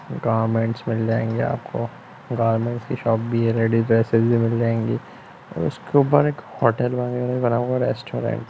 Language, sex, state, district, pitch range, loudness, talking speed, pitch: Hindi, male, Bihar, Lakhisarai, 115-125 Hz, -22 LUFS, 175 wpm, 115 Hz